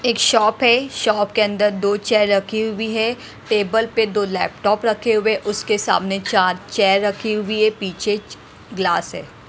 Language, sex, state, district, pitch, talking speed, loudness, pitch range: Hindi, female, Punjab, Pathankot, 215 Hz, 170 wpm, -18 LUFS, 205-220 Hz